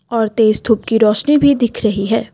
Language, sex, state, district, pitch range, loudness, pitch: Hindi, female, Assam, Kamrup Metropolitan, 215-240 Hz, -14 LUFS, 225 Hz